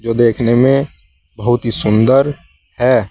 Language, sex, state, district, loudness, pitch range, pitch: Hindi, male, Uttar Pradesh, Saharanpur, -14 LUFS, 105-125 Hz, 115 Hz